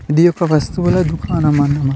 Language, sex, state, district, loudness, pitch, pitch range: Telugu, male, Telangana, Nalgonda, -15 LUFS, 155 Hz, 145-170 Hz